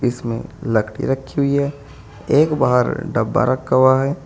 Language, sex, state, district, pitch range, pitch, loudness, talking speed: Hindi, male, Uttar Pradesh, Saharanpur, 120-140 Hz, 130 Hz, -18 LUFS, 155 wpm